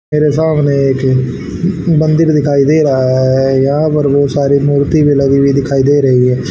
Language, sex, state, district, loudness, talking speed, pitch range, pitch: Hindi, male, Haryana, Rohtak, -11 LUFS, 185 wpm, 135-150 Hz, 140 Hz